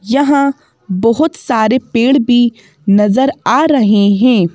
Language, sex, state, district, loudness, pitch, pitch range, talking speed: Hindi, female, Madhya Pradesh, Bhopal, -12 LUFS, 240 Hz, 210-275 Hz, 120 wpm